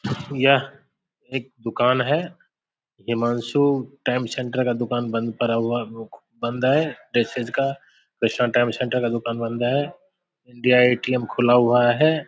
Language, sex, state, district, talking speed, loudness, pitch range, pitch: Hindi, male, Bihar, Samastipur, 95 wpm, -22 LUFS, 120-135 Hz, 125 Hz